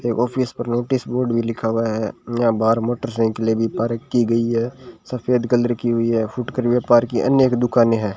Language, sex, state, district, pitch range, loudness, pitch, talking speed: Hindi, male, Rajasthan, Bikaner, 115-125 Hz, -20 LUFS, 120 Hz, 205 wpm